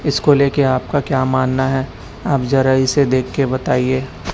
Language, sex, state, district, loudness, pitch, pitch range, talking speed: Hindi, male, Chhattisgarh, Raipur, -16 LUFS, 130 Hz, 130-140 Hz, 150 wpm